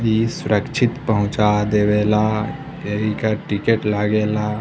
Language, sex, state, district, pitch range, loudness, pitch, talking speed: Bhojpuri, male, Bihar, East Champaran, 105-110 Hz, -19 LUFS, 105 Hz, 105 wpm